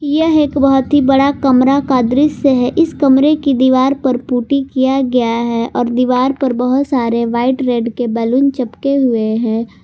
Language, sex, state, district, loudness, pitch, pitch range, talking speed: Hindi, female, Jharkhand, Garhwa, -13 LUFS, 260 Hz, 245-275 Hz, 185 wpm